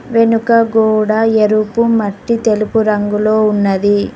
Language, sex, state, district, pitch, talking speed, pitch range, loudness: Telugu, female, Telangana, Mahabubabad, 215 Hz, 100 wpm, 210-225 Hz, -13 LUFS